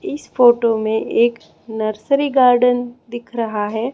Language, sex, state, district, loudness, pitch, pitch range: Hindi, female, Chhattisgarh, Raipur, -17 LUFS, 240 Hz, 220-245 Hz